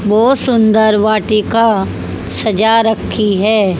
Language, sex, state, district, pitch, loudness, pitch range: Hindi, female, Haryana, Charkhi Dadri, 215 Hz, -12 LUFS, 205-225 Hz